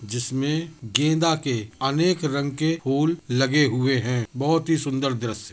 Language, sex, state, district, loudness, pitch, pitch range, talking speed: Hindi, male, Uttar Pradesh, Budaun, -23 LUFS, 140 Hz, 125-155 Hz, 150 wpm